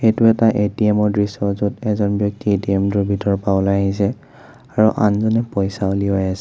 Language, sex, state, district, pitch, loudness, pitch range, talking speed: Assamese, male, Assam, Sonitpur, 100 Hz, -18 LUFS, 100-110 Hz, 180 wpm